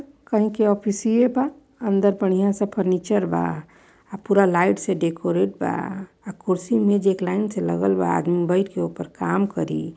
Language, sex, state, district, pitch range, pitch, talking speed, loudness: Bhojpuri, female, Uttar Pradesh, Varanasi, 175-210 Hz, 195 Hz, 180 wpm, -22 LUFS